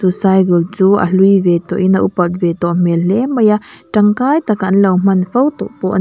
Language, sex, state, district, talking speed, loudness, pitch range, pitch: Mizo, female, Mizoram, Aizawl, 250 wpm, -13 LUFS, 180-210 Hz, 190 Hz